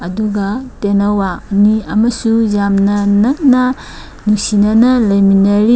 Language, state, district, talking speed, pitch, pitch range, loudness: Manipuri, Manipur, Imphal West, 85 wpm, 210 Hz, 200-230 Hz, -13 LUFS